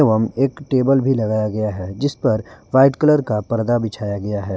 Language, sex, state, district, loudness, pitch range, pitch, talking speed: Hindi, male, Jharkhand, Garhwa, -18 LUFS, 105-135 Hz, 115 Hz, 210 wpm